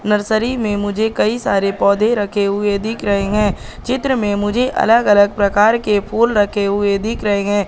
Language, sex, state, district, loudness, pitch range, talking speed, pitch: Hindi, female, Madhya Pradesh, Katni, -16 LUFS, 200-220 Hz, 180 wpm, 205 Hz